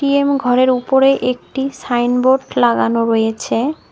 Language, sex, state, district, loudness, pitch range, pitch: Bengali, female, West Bengal, Cooch Behar, -15 LUFS, 240-270 Hz, 255 Hz